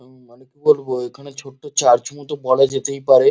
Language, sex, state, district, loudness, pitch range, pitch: Bengali, male, West Bengal, Kolkata, -18 LUFS, 130-145 Hz, 135 Hz